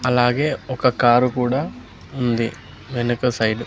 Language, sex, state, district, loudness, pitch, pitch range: Telugu, male, Andhra Pradesh, Sri Satya Sai, -20 LUFS, 120 Hz, 115-125 Hz